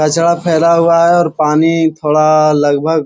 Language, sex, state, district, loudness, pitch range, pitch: Hindi, male, Bihar, Jamui, -11 LUFS, 155-170 Hz, 160 Hz